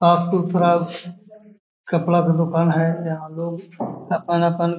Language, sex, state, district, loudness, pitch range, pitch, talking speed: Magahi, male, Bihar, Gaya, -20 LUFS, 170-175 Hz, 170 Hz, 115 wpm